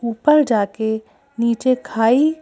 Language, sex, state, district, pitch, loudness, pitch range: Hindi, female, Madhya Pradesh, Bhopal, 235 Hz, -18 LUFS, 220-280 Hz